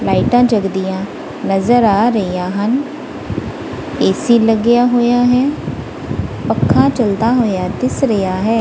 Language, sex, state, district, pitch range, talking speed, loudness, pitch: Punjabi, female, Punjab, Kapurthala, 195-245 Hz, 120 wpm, -15 LUFS, 225 Hz